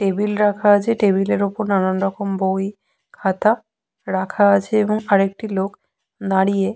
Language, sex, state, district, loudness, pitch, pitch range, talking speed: Bengali, female, West Bengal, Jhargram, -19 LUFS, 200 Hz, 195-210 Hz, 135 wpm